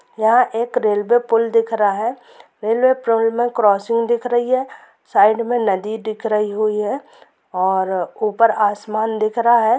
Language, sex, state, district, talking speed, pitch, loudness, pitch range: Hindi, female, Jharkhand, Sahebganj, 165 wpm, 225 Hz, -18 LUFS, 210-235 Hz